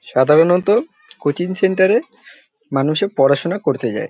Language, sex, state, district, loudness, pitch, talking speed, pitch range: Bengali, male, West Bengal, North 24 Parganas, -16 LUFS, 180 Hz, 115 wpm, 150-195 Hz